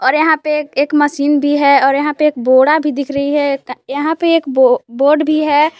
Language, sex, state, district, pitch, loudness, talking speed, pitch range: Hindi, female, Jharkhand, Palamu, 290 Hz, -13 LUFS, 260 wpm, 275-300 Hz